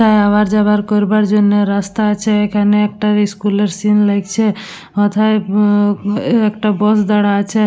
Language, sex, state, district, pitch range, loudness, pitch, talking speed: Bengali, female, West Bengal, Dakshin Dinajpur, 205-210 Hz, -14 LUFS, 210 Hz, 140 wpm